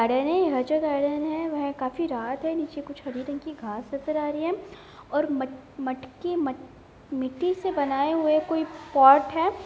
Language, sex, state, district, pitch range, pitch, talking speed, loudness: Hindi, female, Bihar, Gopalganj, 270-320 Hz, 295 Hz, 155 wpm, -26 LUFS